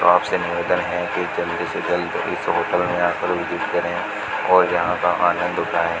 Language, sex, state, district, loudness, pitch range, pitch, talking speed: Hindi, male, Rajasthan, Bikaner, -21 LUFS, 85-90 Hz, 90 Hz, 180 wpm